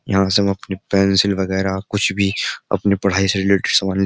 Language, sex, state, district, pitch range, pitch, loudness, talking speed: Hindi, male, Uttar Pradesh, Jyotiba Phule Nagar, 95-100 Hz, 95 Hz, -18 LUFS, 205 wpm